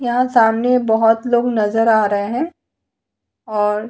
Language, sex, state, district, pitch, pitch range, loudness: Hindi, female, Goa, North and South Goa, 225 Hz, 215-245 Hz, -16 LUFS